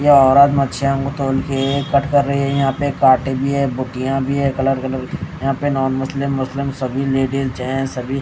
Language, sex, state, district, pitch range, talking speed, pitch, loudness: Hindi, male, Odisha, Khordha, 135-140 Hz, 220 wpm, 135 Hz, -17 LUFS